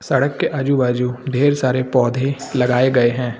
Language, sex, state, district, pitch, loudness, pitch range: Hindi, male, Uttar Pradesh, Lucknow, 130 Hz, -18 LUFS, 125-135 Hz